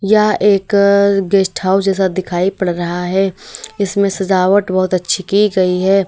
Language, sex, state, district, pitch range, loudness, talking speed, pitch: Hindi, female, Uttar Pradesh, Lalitpur, 185-200 Hz, -14 LUFS, 160 wpm, 195 Hz